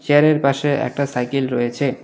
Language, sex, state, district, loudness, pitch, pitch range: Bengali, male, West Bengal, Alipurduar, -19 LUFS, 140 Hz, 125-145 Hz